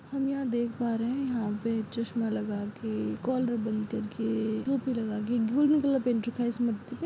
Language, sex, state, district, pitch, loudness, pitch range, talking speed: Hindi, female, Maharashtra, Dhule, 230 Hz, -30 LUFS, 220-250 Hz, 155 wpm